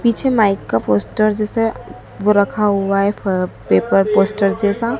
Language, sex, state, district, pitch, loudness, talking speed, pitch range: Hindi, female, Madhya Pradesh, Dhar, 205 Hz, -16 LUFS, 130 wpm, 195-215 Hz